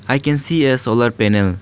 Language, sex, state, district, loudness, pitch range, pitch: English, male, Arunachal Pradesh, Lower Dibang Valley, -15 LUFS, 105-140 Hz, 120 Hz